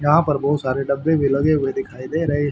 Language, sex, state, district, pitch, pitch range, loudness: Hindi, male, Haryana, Rohtak, 145 Hz, 135-150 Hz, -20 LUFS